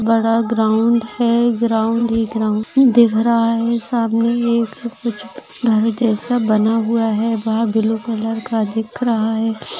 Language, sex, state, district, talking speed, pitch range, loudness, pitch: Hindi, female, Bihar, Jamui, 145 wpm, 220-235 Hz, -17 LUFS, 225 Hz